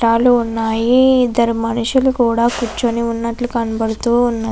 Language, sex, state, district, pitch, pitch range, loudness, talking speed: Telugu, female, Andhra Pradesh, Chittoor, 235 Hz, 230-245 Hz, -16 LUFS, 105 wpm